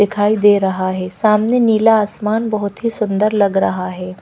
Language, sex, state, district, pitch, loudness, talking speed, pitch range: Hindi, female, Himachal Pradesh, Shimla, 210 Hz, -15 LUFS, 185 wpm, 190-215 Hz